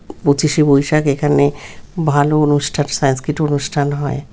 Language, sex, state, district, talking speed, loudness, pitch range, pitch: Bengali, male, West Bengal, Kolkata, 125 wpm, -15 LUFS, 140-150 Hz, 145 Hz